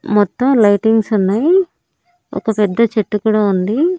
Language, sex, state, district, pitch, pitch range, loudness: Telugu, female, Andhra Pradesh, Annamaya, 220 Hz, 205-265 Hz, -14 LUFS